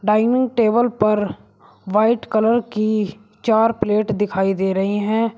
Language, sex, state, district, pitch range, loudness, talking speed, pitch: Hindi, male, Uttar Pradesh, Shamli, 205-225 Hz, -19 LUFS, 135 wpm, 215 Hz